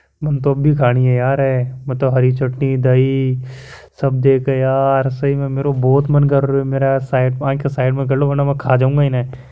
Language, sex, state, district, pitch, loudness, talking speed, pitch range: Hindi, male, Rajasthan, Churu, 135 Hz, -16 LUFS, 220 wpm, 130-140 Hz